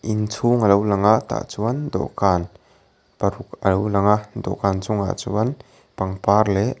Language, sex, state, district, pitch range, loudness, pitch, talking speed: Mizo, male, Mizoram, Aizawl, 100-115 Hz, -21 LUFS, 105 Hz, 140 wpm